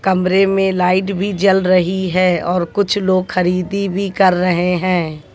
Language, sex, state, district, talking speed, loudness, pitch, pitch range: Hindi, female, Haryana, Jhajjar, 170 wpm, -15 LUFS, 185 Hz, 180-195 Hz